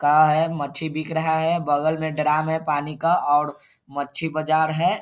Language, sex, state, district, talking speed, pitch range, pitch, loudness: Hindi, male, Bihar, Saharsa, 180 wpm, 150-160 Hz, 155 Hz, -22 LUFS